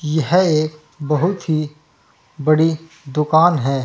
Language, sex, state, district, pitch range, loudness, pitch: Hindi, male, Uttar Pradesh, Saharanpur, 150-160 Hz, -17 LUFS, 155 Hz